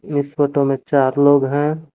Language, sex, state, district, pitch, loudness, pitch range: Hindi, male, Jharkhand, Palamu, 145 Hz, -17 LUFS, 140-145 Hz